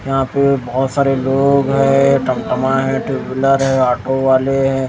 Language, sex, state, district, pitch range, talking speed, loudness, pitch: Hindi, male, Odisha, Malkangiri, 130-135 Hz, 170 wpm, -15 LUFS, 135 Hz